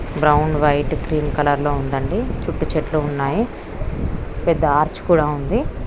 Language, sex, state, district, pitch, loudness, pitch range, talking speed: Telugu, female, Andhra Pradesh, Krishna, 150 Hz, -20 LUFS, 140-155 Hz, 135 wpm